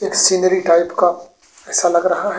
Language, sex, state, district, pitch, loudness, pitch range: Bhojpuri, male, Uttar Pradesh, Gorakhpur, 175 Hz, -15 LUFS, 175-185 Hz